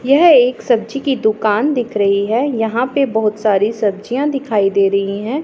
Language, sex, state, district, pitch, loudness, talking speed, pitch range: Hindi, female, Punjab, Pathankot, 225 Hz, -15 LUFS, 185 wpm, 205-270 Hz